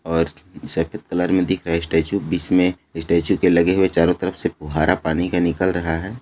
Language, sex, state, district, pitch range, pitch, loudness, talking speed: Hindi, male, Chhattisgarh, Bilaspur, 80-95 Hz, 90 Hz, -20 LUFS, 210 wpm